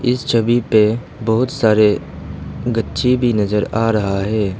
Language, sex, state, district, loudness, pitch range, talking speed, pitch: Hindi, male, Arunachal Pradesh, Lower Dibang Valley, -17 LUFS, 100-120 Hz, 145 wpm, 110 Hz